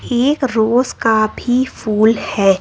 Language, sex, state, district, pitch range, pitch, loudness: Hindi, male, Uttar Pradesh, Lucknow, 215-250 Hz, 225 Hz, -15 LUFS